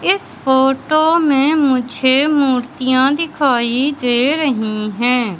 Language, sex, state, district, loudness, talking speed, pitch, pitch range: Hindi, male, Madhya Pradesh, Katni, -15 LUFS, 100 wpm, 265 Hz, 250-295 Hz